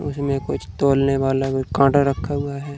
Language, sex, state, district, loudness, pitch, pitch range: Hindi, male, Uttar Pradesh, Muzaffarnagar, -20 LUFS, 140 Hz, 135-140 Hz